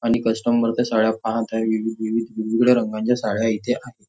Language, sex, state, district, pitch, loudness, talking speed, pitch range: Marathi, male, Maharashtra, Nagpur, 115 Hz, -21 LUFS, 190 wpm, 110-120 Hz